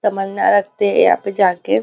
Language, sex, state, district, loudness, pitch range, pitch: Hindi, female, Maharashtra, Nagpur, -16 LUFS, 195-205 Hz, 200 Hz